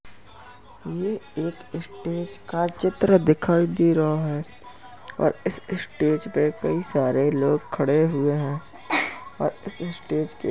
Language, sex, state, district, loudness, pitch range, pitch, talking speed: Hindi, male, Uttar Pradesh, Jalaun, -24 LUFS, 150-175 Hz, 160 Hz, 135 wpm